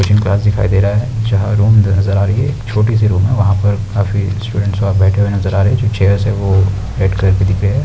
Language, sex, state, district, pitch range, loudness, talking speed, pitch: Hindi, male, Uttarakhand, Tehri Garhwal, 100-105 Hz, -13 LUFS, 275 wpm, 100 Hz